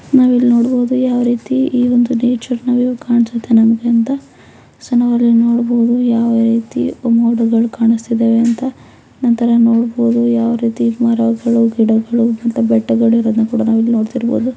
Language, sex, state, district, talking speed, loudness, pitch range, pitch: Kannada, female, Karnataka, Belgaum, 130 wpm, -14 LUFS, 230-245 Hz, 235 Hz